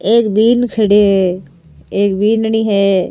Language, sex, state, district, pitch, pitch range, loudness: Rajasthani, female, Rajasthan, Nagaur, 205 Hz, 195-220 Hz, -13 LUFS